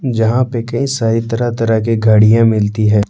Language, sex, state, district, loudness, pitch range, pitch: Hindi, male, Jharkhand, Deoghar, -13 LUFS, 110-120 Hz, 115 Hz